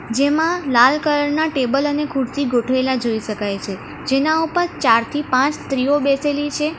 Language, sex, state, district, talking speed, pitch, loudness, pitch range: Gujarati, female, Gujarat, Valsad, 160 wpm, 275 Hz, -18 LUFS, 250-295 Hz